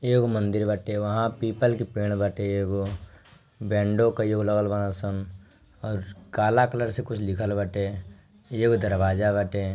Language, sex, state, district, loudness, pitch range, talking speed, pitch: Bhojpuri, male, Bihar, Gopalganj, -26 LUFS, 100-110 Hz, 170 wpm, 105 Hz